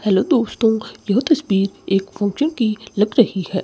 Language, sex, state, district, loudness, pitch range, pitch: Hindi, male, Chandigarh, Chandigarh, -19 LUFS, 195-235 Hz, 215 Hz